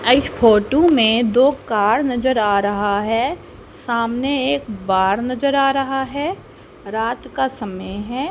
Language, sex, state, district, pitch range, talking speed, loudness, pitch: Hindi, female, Haryana, Charkhi Dadri, 210-275 Hz, 145 wpm, -18 LUFS, 240 Hz